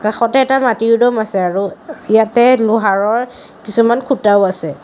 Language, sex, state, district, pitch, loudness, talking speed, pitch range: Assamese, female, Assam, Sonitpur, 225 Hz, -13 LUFS, 135 wpm, 200-245 Hz